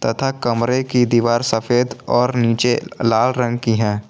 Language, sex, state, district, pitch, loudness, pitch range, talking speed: Hindi, male, Jharkhand, Garhwa, 120 Hz, -18 LUFS, 115-125 Hz, 160 wpm